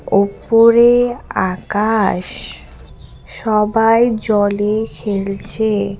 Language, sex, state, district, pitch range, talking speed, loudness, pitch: Bengali, female, West Bengal, Alipurduar, 195-225 Hz, 50 wpm, -15 LUFS, 210 Hz